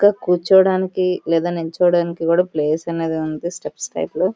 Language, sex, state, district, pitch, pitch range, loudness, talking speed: Telugu, female, Andhra Pradesh, Visakhapatnam, 175 Hz, 165-185 Hz, -19 LUFS, 140 wpm